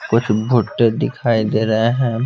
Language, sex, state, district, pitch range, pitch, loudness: Hindi, male, Bihar, Patna, 110-120 Hz, 115 Hz, -17 LUFS